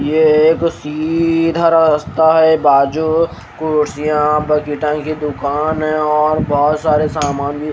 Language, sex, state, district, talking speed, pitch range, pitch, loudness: Hindi, male, Haryana, Rohtak, 115 wpm, 150-160 Hz, 150 Hz, -14 LUFS